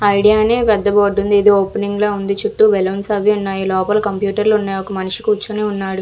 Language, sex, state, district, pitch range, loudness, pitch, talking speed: Telugu, female, Andhra Pradesh, Visakhapatnam, 195-210 Hz, -15 LUFS, 205 Hz, 210 wpm